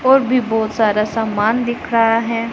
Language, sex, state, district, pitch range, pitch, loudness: Hindi, female, Punjab, Pathankot, 220-240 Hz, 230 Hz, -16 LUFS